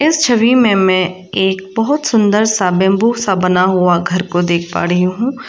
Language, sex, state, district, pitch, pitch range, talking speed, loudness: Hindi, female, Arunachal Pradesh, Lower Dibang Valley, 190 Hz, 180-230 Hz, 195 wpm, -13 LUFS